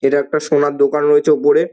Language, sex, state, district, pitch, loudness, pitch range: Bengali, male, West Bengal, Dakshin Dinajpur, 150 Hz, -14 LUFS, 145-155 Hz